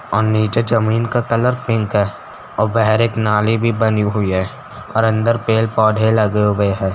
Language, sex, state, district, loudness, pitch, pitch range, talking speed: Hindi, male, Uttar Pradesh, Etah, -16 LUFS, 110 Hz, 105-115 Hz, 180 wpm